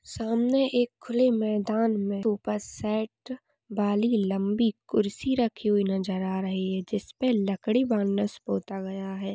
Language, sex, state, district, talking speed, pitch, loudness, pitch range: Hindi, female, Maharashtra, Sindhudurg, 140 wpm, 210 Hz, -27 LUFS, 195-235 Hz